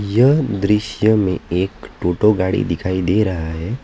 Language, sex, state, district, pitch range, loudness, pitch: Hindi, male, West Bengal, Alipurduar, 90-110 Hz, -18 LUFS, 100 Hz